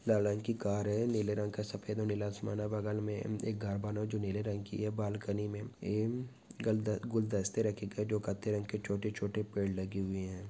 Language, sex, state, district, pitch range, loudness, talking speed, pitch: Hindi, male, Goa, North and South Goa, 100-110 Hz, -36 LUFS, 250 wpm, 105 Hz